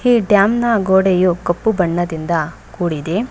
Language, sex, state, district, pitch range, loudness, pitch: Kannada, female, Karnataka, Bangalore, 170-215 Hz, -16 LUFS, 180 Hz